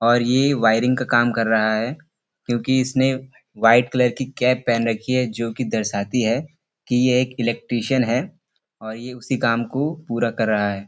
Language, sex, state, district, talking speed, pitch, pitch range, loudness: Hindi, male, Uttar Pradesh, Hamirpur, 185 wpm, 120 Hz, 115-130 Hz, -20 LUFS